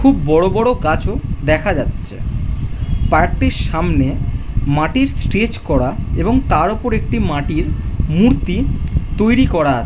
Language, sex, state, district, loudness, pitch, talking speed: Bengali, male, West Bengal, Jhargram, -17 LUFS, 160 Hz, 140 wpm